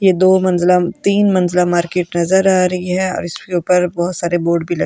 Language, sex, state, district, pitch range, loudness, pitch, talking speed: Hindi, female, Delhi, New Delhi, 175-185 Hz, -15 LUFS, 180 Hz, 235 wpm